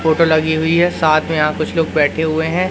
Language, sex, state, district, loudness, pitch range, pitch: Hindi, male, Madhya Pradesh, Umaria, -15 LUFS, 155-165 Hz, 160 Hz